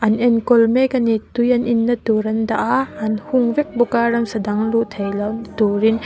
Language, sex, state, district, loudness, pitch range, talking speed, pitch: Mizo, female, Mizoram, Aizawl, -18 LUFS, 215-240 Hz, 225 wpm, 230 Hz